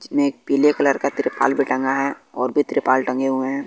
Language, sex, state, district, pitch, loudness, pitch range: Hindi, male, Bihar, West Champaran, 140 Hz, -20 LUFS, 130-145 Hz